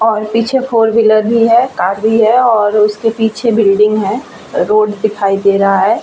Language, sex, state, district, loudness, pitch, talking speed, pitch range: Hindi, female, Bihar, Vaishali, -11 LUFS, 220 Hz, 210 wpm, 210-230 Hz